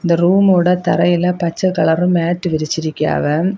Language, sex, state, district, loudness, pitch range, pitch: Tamil, female, Tamil Nadu, Kanyakumari, -15 LUFS, 160-180 Hz, 175 Hz